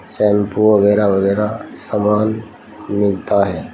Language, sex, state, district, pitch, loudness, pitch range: Hindi, male, Uttar Pradesh, Saharanpur, 105 Hz, -16 LUFS, 100-105 Hz